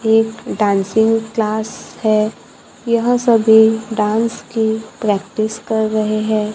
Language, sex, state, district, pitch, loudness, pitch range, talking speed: Hindi, female, Maharashtra, Gondia, 220 Hz, -16 LUFS, 215-225 Hz, 110 wpm